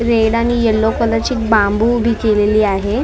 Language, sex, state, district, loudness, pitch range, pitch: Marathi, female, Maharashtra, Mumbai Suburban, -14 LUFS, 215-230 Hz, 225 Hz